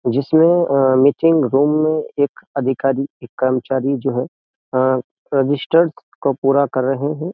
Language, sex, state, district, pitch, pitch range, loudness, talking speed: Hindi, male, Uttar Pradesh, Jyotiba Phule Nagar, 140 Hz, 130-155 Hz, -17 LUFS, 130 wpm